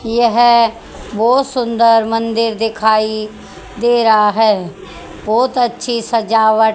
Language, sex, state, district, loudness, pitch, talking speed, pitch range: Hindi, female, Haryana, Jhajjar, -14 LUFS, 225 Hz, 100 wpm, 215-235 Hz